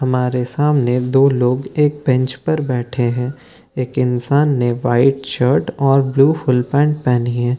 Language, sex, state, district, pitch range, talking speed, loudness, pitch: Hindi, male, Bihar, Katihar, 125-140 Hz, 165 wpm, -16 LUFS, 130 Hz